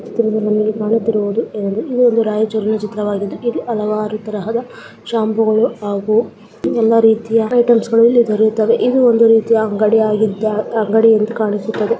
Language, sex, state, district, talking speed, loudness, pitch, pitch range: Kannada, male, Karnataka, Raichur, 140 wpm, -15 LUFS, 220 Hz, 215-230 Hz